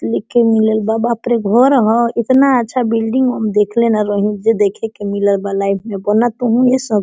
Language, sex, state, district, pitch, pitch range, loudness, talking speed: Hindi, female, Jharkhand, Sahebganj, 225 Hz, 205-240 Hz, -14 LUFS, 215 wpm